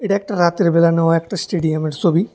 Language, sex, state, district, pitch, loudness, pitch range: Bengali, male, Tripura, West Tripura, 170 Hz, -17 LUFS, 165-195 Hz